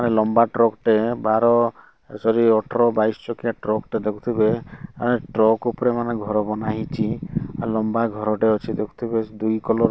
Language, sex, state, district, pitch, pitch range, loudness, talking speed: Odia, male, Odisha, Malkangiri, 115 Hz, 110-115 Hz, -21 LUFS, 170 wpm